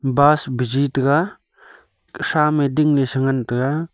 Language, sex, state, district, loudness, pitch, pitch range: Wancho, male, Arunachal Pradesh, Longding, -19 LUFS, 140 Hz, 130-150 Hz